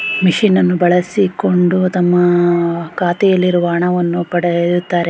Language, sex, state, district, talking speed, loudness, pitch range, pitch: Kannada, female, Karnataka, Gulbarga, 70 wpm, -14 LUFS, 175-185 Hz, 175 Hz